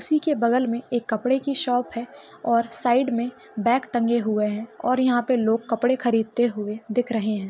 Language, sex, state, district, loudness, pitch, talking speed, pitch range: Hindi, female, Maharashtra, Pune, -23 LUFS, 240 Hz, 200 wpm, 230-250 Hz